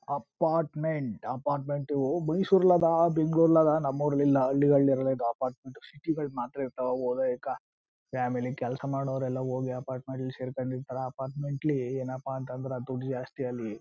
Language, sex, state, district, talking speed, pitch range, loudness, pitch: Kannada, male, Karnataka, Chamarajanagar, 160 wpm, 130-145 Hz, -29 LUFS, 135 Hz